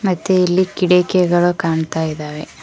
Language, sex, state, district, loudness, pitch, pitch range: Kannada, female, Karnataka, Koppal, -16 LUFS, 175 Hz, 160-185 Hz